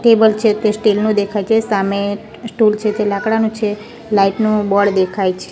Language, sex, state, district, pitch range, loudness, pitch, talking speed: Gujarati, female, Gujarat, Gandhinagar, 200-220 Hz, -15 LUFS, 210 Hz, 195 wpm